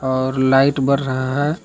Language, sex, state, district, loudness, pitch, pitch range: Hindi, male, Jharkhand, Palamu, -17 LUFS, 135 Hz, 130-140 Hz